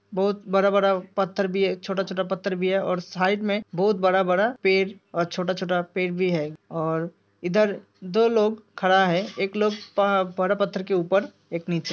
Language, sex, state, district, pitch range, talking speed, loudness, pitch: Hindi, female, Uttar Pradesh, Hamirpur, 185-200 Hz, 180 wpm, -24 LUFS, 190 Hz